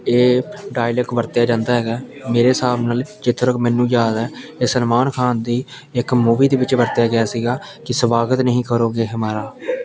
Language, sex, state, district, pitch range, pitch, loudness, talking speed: Punjabi, male, Punjab, Pathankot, 115-125 Hz, 120 Hz, -18 LUFS, 175 wpm